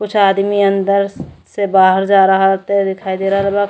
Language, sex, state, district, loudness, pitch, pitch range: Bhojpuri, female, Uttar Pradesh, Gorakhpur, -13 LUFS, 195 Hz, 195-200 Hz